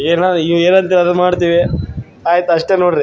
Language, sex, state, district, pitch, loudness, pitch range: Kannada, male, Karnataka, Raichur, 175 Hz, -13 LUFS, 170-180 Hz